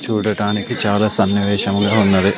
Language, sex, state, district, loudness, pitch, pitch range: Telugu, male, Andhra Pradesh, Sri Satya Sai, -16 LUFS, 100 Hz, 100-105 Hz